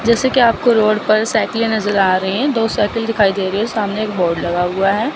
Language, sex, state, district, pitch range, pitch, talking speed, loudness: Hindi, female, Chandigarh, Chandigarh, 195-230 Hz, 215 Hz, 265 wpm, -16 LUFS